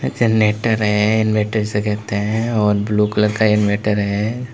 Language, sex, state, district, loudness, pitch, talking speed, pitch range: Hindi, male, Uttar Pradesh, Lalitpur, -17 LUFS, 105 Hz, 160 wpm, 105-110 Hz